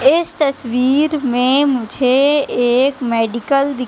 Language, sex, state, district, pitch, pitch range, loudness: Hindi, female, Madhya Pradesh, Katni, 265 Hz, 245-285 Hz, -15 LUFS